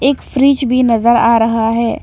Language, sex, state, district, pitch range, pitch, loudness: Hindi, female, Arunachal Pradesh, Papum Pare, 230-260 Hz, 235 Hz, -12 LUFS